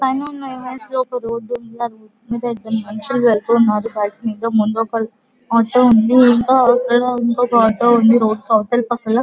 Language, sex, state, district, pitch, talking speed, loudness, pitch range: Telugu, female, Andhra Pradesh, Guntur, 235 Hz, 175 wpm, -16 LUFS, 225-245 Hz